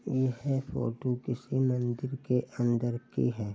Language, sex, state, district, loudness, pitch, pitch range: Hindi, male, Uttar Pradesh, Hamirpur, -31 LUFS, 125 Hz, 120-130 Hz